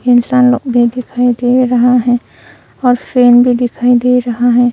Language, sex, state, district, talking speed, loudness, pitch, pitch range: Hindi, female, Arunachal Pradesh, Longding, 180 wpm, -11 LUFS, 245 Hz, 245-250 Hz